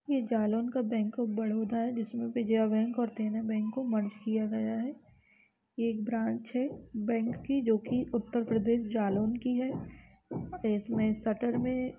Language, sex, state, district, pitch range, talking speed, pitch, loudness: Hindi, female, Uttar Pradesh, Jalaun, 220-240 Hz, 170 wpm, 230 Hz, -32 LUFS